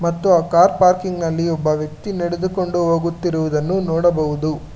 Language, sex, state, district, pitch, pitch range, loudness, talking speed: Kannada, male, Karnataka, Bangalore, 170 Hz, 155-180 Hz, -18 LUFS, 125 wpm